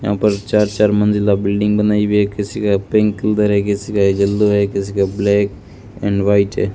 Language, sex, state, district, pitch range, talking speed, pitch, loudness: Hindi, male, Rajasthan, Bikaner, 100-105 Hz, 205 wpm, 100 Hz, -16 LUFS